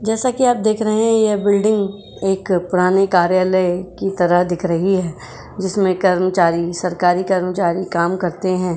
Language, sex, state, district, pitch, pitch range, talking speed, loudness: Hindi, female, Uttar Pradesh, Jyotiba Phule Nagar, 185 Hz, 180-200 Hz, 155 wpm, -17 LUFS